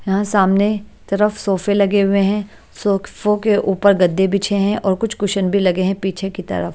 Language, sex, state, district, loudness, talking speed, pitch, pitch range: Hindi, female, Maharashtra, Washim, -17 LUFS, 195 wpm, 200 Hz, 190-205 Hz